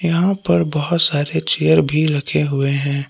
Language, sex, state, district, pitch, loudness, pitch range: Hindi, male, Jharkhand, Palamu, 145 Hz, -16 LUFS, 135-155 Hz